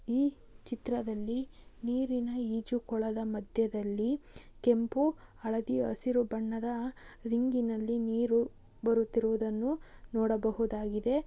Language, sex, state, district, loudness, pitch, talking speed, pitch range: Kannada, female, Karnataka, Bijapur, -33 LUFS, 230 Hz, 80 wpm, 225-245 Hz